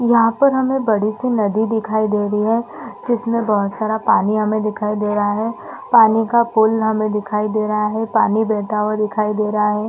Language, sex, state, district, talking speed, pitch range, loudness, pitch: Hindi, female, Chhattisgarh, Bastar, 205 wpm, 210-225 Hz, -17 LUFS, 215 Hz